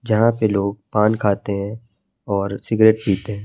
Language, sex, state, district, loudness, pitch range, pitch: Hindi, male, Madhya Pradesh, Bhopal, -19 LUFS, 100-110 Hz, 105 Hz